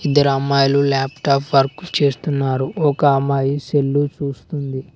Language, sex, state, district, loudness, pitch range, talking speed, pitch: Telugu, male, Telangana, Mahabubabad, -18 LUFS, 135-145 Hz, 95 wpm, 140 Hz